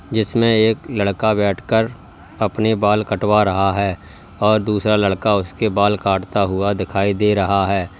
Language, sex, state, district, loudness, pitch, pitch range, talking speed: Hindi, male, Uttar Pradesh, Lalitpur, -18 LUFS, 100 Hz, 95-110 Hz, 150 wpm